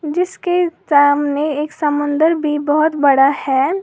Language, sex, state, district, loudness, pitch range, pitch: Hindi, female, Uttar Pradesh, Lalitpur, -15 LUFS, 290-320 Hz, 300 Hz